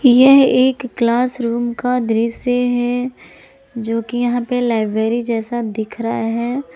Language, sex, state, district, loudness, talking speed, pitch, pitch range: Hindi, female, Jharkhand, Ranchi, -17 LUFS, 140 wpm, 240 Hz, 230-250 Hz